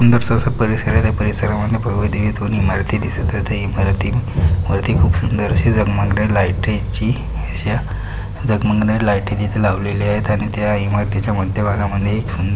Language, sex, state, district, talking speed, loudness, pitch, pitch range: Marathi, female, Maharashtra, Pune, 145 wpm, -17 LUFS, 105 Hz, 100-110 Hz